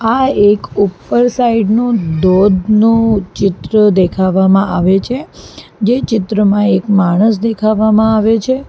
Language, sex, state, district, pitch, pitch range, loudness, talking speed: Gujarati, female, Gujarat, Valsad, 215 Hz, 195-225 Hz, -12 LUFS, 115 wpm